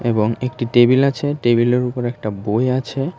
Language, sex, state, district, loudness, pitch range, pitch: Bengali, male, Tripura, West Tripura, -18 LUFS, 120-130 Hz, 120 Hz